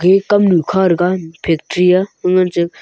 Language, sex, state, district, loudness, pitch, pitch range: Wancho, male, Arunachal Pradesh, Longding, -14 LUFS, 180 Hz, 170-185 Hz